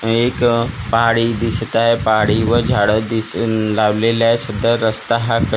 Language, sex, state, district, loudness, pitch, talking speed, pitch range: Marathi, male, Maharashtra, Gondia, -16 LUFS, 115 Hz, 150 wpm, 110-115 Hz